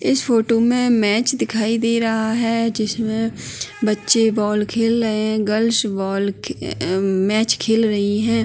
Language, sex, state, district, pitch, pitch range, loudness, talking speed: Hindi, female, Uttarakhand, Tehri Garhwal, 225 Hz, 210-230 Hz, -19 LUFS, 155 wpm